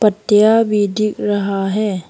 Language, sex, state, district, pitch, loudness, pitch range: Hindi, female, Arunachal Pradesh, Papum Pare, 210 Hz, -15 LUFS, 200-215 Hz